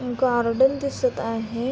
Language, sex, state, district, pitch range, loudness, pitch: Marathi, female, Maharashtra, Pune, 235-270 Hz, -23 LUFS, 250 Hz